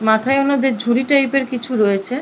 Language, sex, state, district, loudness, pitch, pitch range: Bengali, female, West Bengal, Purulia, -17 LUFS, 255 Hz, 225-275 Hz